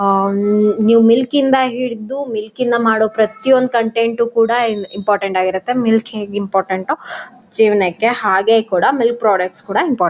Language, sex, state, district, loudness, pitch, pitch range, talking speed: Kannada, female, Karnataka, Mysore, -15 LUFS, 225 Hz, 205-240 Hz, 155 wpm